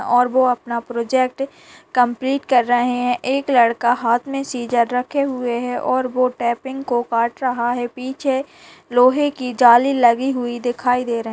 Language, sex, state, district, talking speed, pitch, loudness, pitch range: Hindi, female, Bihar, Kishanganj, 175 wpm, 245 Hz, -18 LUFS, 240-265 Hz